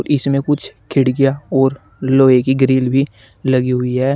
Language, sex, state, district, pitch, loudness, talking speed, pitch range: Hindi, male, Uttar Pradesh, Shamli, 135 Hz, -15 LUFS, 160 wpm, 130-140 Hz